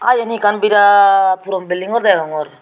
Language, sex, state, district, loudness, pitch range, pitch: Chakma, female, Tripura, Unakoti, -13 LUFS, 185-210 Hz, 200 Hz